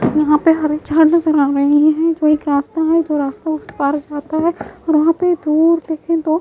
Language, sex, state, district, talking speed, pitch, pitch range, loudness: Hindi, female, Haryana, Jhajjar, 235 wpm, 310 Hz, 300-325 Hz, -15 LUFS